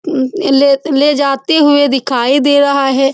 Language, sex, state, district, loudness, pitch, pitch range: Hindi, female, Uttar Pradesh, Muzaffarnagar, -11 LUFS, 280 Hz, 270-285 Hz